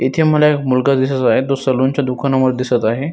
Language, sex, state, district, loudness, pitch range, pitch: Marathi, male, Maharashtra, Dhule, -15 LUFS, 130-140 Hz, 130 Hz